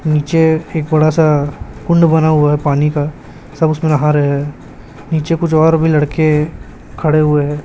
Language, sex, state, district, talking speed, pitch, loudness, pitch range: Hindi, male, Chhattisgarh, Raipur, 180 wpm, 155 Hz, -13 LUFS, 145-160 Hz